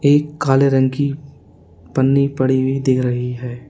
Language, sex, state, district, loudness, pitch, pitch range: Hindi, male, Uttar Pradesh, Lalitpur, -17 LUFS, 130 Hz, 125-140 Hz